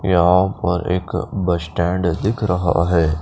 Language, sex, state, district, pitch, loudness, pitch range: Hindi, male, Chandigarh, Chandigarh, 90 Hz, -19 LUFS, 85-95 Hz